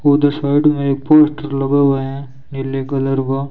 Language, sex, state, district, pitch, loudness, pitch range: Hindi, male, Rajasthan, Bikaner, 140 Hz, -16 LUFS, 135-145 Hz